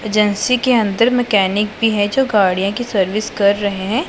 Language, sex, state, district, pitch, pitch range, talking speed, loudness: Hindi, female, Punjab, Pathankot, 210 Hz, 200-235 Hz, 190 wpm, -16 LUFS